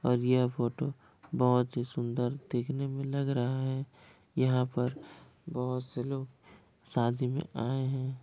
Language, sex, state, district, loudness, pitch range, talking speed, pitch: Hindi, male, Bihar, Kishanganj, -32 LUFS, 125-135 Hz, 145 wpm, 125 Hz